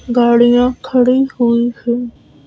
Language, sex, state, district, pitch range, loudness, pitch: Hindi, female, Madhya Pradesh, Bhopal, 235-250 Hz, -13 LUFS, 240 Hz